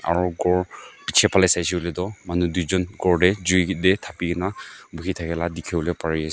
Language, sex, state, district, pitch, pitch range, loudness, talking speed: Nagamese, male, Nagaland, Kohima, 90 Hz, 85-95 Hz, -22 LUFS, 190 wpm